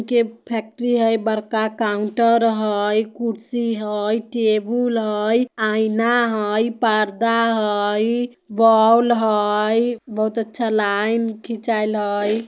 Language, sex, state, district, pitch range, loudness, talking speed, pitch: Bajjika, female, Bihar, Vaishali, 215-230 Hz, -19 LUFS, 100 wpm, 220 Hz